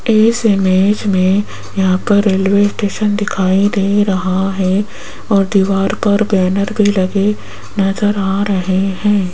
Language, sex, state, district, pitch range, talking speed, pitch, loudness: Hindi, female, Rajasthan, Jaipur, 190-205 Hz, 135 wpm, 200 Hz, -14 LUFS